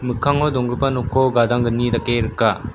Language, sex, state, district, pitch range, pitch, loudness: Garo, female, Meghalaya, West Garo Hills, 115-130 Hz, 120 Hz, -19 LUFS